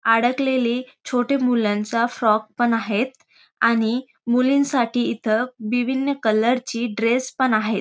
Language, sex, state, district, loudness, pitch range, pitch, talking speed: Marathi, female, Maharashtra, Dhule, -21 LUFS, 225-255 Hz, 240 Hz, 115 wpm